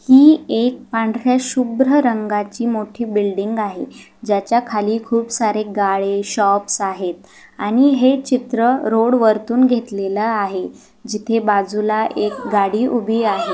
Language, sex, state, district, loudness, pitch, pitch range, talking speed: Marathi, female, Maharashtra, Solapur, -17 LUFS, 220 Hz, 205-245 Hz, 125 wpm